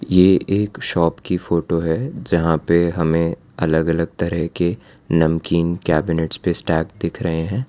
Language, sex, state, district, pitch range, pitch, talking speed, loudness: Hindi, male, Gujarat, Valsad, 80-85 Hz, 85 Hz, 140 wpm, -19 LUFS